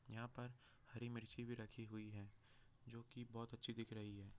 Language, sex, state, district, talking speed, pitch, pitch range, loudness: Hindi, male, Bihar, Jahanabad, 205 wpm, 115 Hz, 110-120 Hz, -53 LUFS